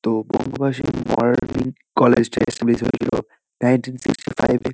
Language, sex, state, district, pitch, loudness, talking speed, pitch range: Bengali, male, West Bengal, Kolkata, 125 Hz, -20 LUFS, 140 wpm, 120-130 Hz